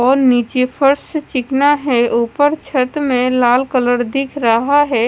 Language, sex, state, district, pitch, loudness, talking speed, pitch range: Hindi, female, Chandigarh, Chandigarh, 260 Hz, -15 LUFS, 155 wpm, 245-285 Hz